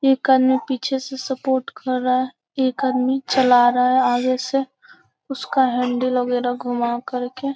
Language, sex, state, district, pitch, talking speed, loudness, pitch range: Hindi, female, Bihar, Gopalganj, 260 Hz, 165 wpm, -20 LUFS, 250-265 Hz